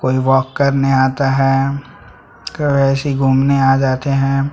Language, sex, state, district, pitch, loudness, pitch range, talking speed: Hindi, male, Chhattisgarh, Sukma, 135 Hz, -15 LUFS, 135-140 Hz, 160 wpm